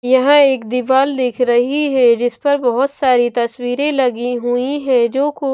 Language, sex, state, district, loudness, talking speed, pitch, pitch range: Hindi, female, Maharashtra, Washim, -15 LUFS, 160 wpm, 255 Hz, 245-275 Hz